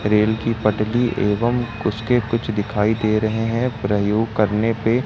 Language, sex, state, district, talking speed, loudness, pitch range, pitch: Hindi, male, Madhya Pradesh, Katni, 155 wpm, -20 LUFS, 105-115 Hz, 110 Hz